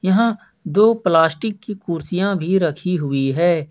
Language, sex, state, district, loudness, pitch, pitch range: Hindi, male, Jharkhand, Ranchi, -18 LUFS, 180 Hz, 165-200 Hz